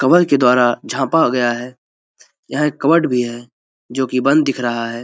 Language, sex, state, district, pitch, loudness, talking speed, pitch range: Hindi, male, Bihar, Begusarai, 125 Hz, -16 LUFS, 200 wpm, 120-140 Hz